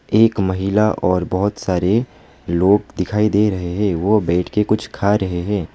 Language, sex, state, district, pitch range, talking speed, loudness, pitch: Hindi, male, West Bengal, Alipurduar, 90-105 Hz, 165 wpm, -18 LUFS, 100 Hz